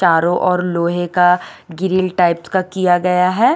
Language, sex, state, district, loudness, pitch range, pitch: Hindi, female, Chandigarh, Chandigarh, -16 LUFS, 175-185 Hz, 180 Hz